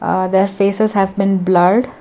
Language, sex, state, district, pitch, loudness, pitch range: English, female, Karnataka, Bangalore, 195 Hz, -15 LUFS, 185-200 Hz